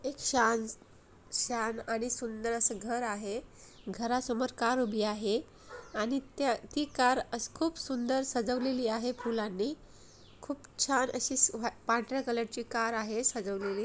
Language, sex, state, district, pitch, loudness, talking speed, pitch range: Marathi, female, Maharashtra, Solapur, 235 Hz, -32 LUFS, 140 wpm, 225-255 Hz